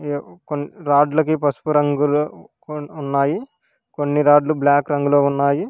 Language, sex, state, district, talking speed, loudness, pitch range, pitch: Telugu, male, Telangana, Hyderabad, 125 wpm, -18 LUFS, 145-150 Hz, 145 Hz